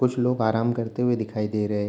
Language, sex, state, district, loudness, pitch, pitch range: Hindi, male, Bihar, Darbhanga, -24 LUFS, 115 Hz, 105-125 Hz